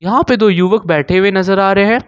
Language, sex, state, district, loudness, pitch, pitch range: Hindi, male, Jharkhand, Ranchi, -12 LUFS, 195 Hz, 190-220 Hz